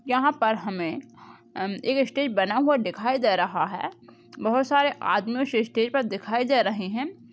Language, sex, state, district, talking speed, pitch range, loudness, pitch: Hindi, female, Maharashtra, Nagpur, 170 wpm, 200-270 Hz, -25 LUFS, 235 Hz